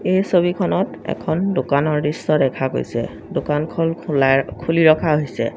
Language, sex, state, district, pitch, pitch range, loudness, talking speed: Assamese, female, Assam, Sonitpur, 155 Hz, 145-170 Hz, -19 LUFS, 130 wpm